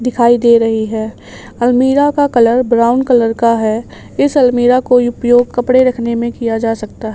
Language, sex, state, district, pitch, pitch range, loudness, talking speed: Hindi, female, Haryana, Jhajjar, 240 Hz, 230-250 Hz, -12 LUFS, 175 wpm